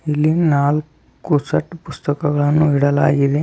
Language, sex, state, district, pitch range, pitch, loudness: Kannada, male, Karnataka, Belgaum, 145-155 Hz, 150 Hz, -17 LUFS